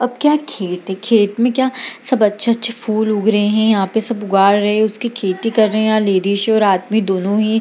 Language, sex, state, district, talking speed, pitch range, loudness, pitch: Hindi, female, Bihar, Gaya, 220 wpm, 200-230 Hz, -15 LUFS, 215 Hz